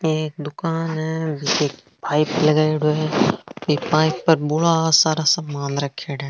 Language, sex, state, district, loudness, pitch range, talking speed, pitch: Marwari, female, Rajasthan, Nagaur, -20 LUFS, 150-160 Hz, 145 wpm, 155 Hz